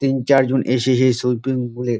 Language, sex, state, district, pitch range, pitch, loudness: Bengali, male, West Bengal, Dakshin Dinajpur, 125-130 Hz, 130 Hz, -18 LUFS